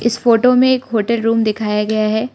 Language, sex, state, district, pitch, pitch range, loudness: Hindi, male, Arunachal Pradesh, Lower Dibang Valley, 225 Hz, 215-240 Hz, -15 LUFS